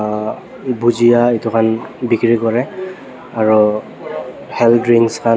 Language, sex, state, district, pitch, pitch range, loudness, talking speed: Nagamese, male, Nagaland, Dimapur, 115 Hz, 115-120 Hz, -14 LUFS, 90 wpm